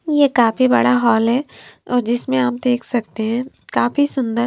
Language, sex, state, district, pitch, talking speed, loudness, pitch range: Hindi, female, Punjab, Fazilka, 245 Hz, 175 wpm, -17 LUFS, 235-265 Hz